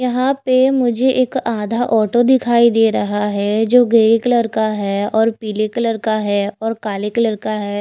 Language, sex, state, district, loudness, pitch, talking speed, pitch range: Hindi, female, Bihar, West Champaran, -16 LUFS, 225 Hz, 190 wpm, 215-240 Hz